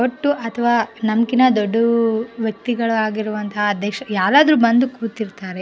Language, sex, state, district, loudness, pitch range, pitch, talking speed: Kannada, female, Karnataka, Bellary, -18 LUFS, 215-240 Hz, 230 Hz, 130 wpm